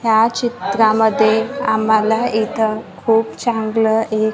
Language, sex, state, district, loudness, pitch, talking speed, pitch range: Marathi, female, Maharashtra, Gondia, -16 LUFS, 220 Hz, 95 wpm, 215-225 Hz